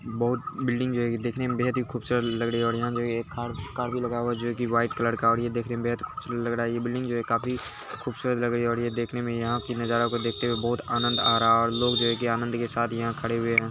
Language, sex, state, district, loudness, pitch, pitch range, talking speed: Hindi, male, Bihar, Araria, -27 LUFS, 120 Hz, 115-120 Hz, 285 wpm